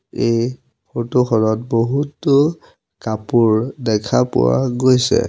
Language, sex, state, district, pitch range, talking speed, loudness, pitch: Assamese, male, Assam, Sonitpur, 110-130 Hz, 90 wpm, -17 LUFS, 120 Hz